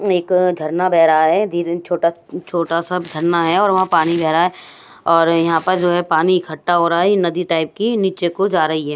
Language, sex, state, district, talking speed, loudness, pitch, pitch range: Hindi, female, Odisha, Sambalpur, 235 wpm, -16 LUFS, 170 Hz, 165-180 Hz